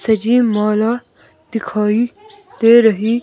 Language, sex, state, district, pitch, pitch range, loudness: Hindi, female, Himachal Pradesh, Shimla, 230 Hz, 215-240 Hz, -15 LUFS